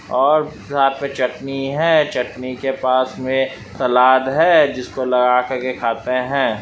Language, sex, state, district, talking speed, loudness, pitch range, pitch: Hindi, male, West Bengal, North 24 Parganas, 155 wpm, -17 LUFS, 125-135 Hz, 130 Hz